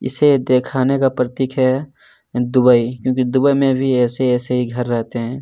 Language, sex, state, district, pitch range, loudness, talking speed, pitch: Hindi, male, Chhattisgarh, Kabirdham, 125-135 Hz, -17 LUFS, 165 wpm, 130 Hz